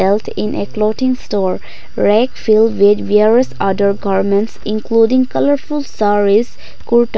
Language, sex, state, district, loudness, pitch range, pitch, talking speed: English, female, Nagaland, Kohima, -14 LUFS, 205-235 Hz, 215 Hz, 115 wpm